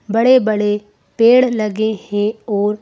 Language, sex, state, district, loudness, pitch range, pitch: Hindi, female, Madhya Pradesh, Bhopal, -15 LUFS, 210-230 Hz, 215 Hz